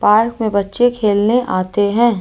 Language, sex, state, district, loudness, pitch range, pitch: Hindi, female, Rajasthan, Jaipur, -15 LUFS, 200-235 Hz, 210 Hz